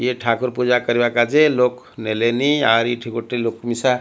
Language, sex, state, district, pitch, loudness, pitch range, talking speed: Odia, male, Odisha, Malkangiri, 120 Hz, -18 LUFS, 115-125 Hz, 180 wpm